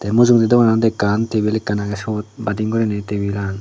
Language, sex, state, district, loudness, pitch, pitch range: Chakma, male, Tripura, Dhalai, -18 LUFS, 105 Hz, 100-115 Hz